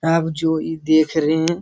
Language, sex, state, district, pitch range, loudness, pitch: Hindi, male, Bihar, Supaul, 155-165 Hz, -19 LUFS, 160 Hz